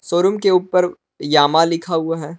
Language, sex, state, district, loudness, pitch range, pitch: Hindi, male, Jharkhand, Palamu, -17 LUFS, 160-180 Hz, 170 Hz